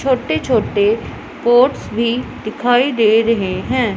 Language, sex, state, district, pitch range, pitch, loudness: Hindi, female, Punjab, Pathankot, 225-260 Hz, 245 Hz, -16 LUFS